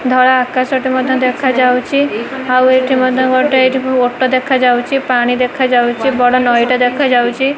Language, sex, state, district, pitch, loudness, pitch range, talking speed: Odia, female, Odisha, Malkangiri, 255 Hz, -12 LUFS, 250-260 Hz, 135 wpm